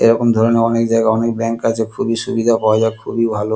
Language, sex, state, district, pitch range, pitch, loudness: Bengali, male, West Bengal, Kolkata, 110-115 Hz, 115 Hz, -16 LUFS